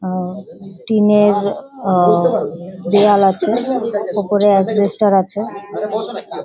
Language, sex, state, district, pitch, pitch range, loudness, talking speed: Bengali, female, West Bengal, Paschim Medinipur, 205 Hz, 195-215 Hz, -15 LUFS, 85 wpm